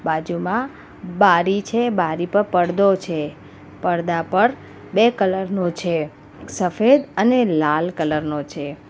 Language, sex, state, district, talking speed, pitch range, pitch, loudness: Gujarati, female, Gujarat, Valsad, 130 wpm, 160-205 Hz, 180 Hz, -19 LUFS